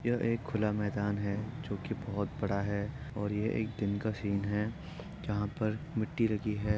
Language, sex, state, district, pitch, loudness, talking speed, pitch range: Hindi, male, Uttar Pradesh, Etah, 105 Hz, -34 LUFS, 195 wpm, 100-110 Hz